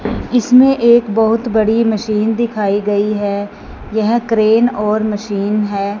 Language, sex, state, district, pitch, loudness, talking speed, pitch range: Hindi, female, Punjab, Fazilka, 220 Hz, -14 LUFS, 130 wpm, 205-230 Hz